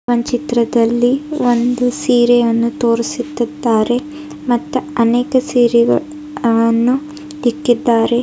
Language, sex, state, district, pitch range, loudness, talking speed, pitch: Kannada, female, Karnataka, Bidar, 235-270 Hz, -15 LUFS, 65 wpm, 245 Hz